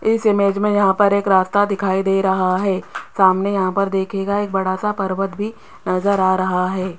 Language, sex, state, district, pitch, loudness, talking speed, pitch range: Hindi, female, Rajasthan, Jaipur, 195 Hz, -18 LUFS, 205 wpm, 190-200 Hz